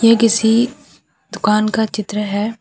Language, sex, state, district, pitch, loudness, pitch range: Hindi, female, Jharkhand, Deoghar, 220 Hz, -16 LUFS, 210-230 Hz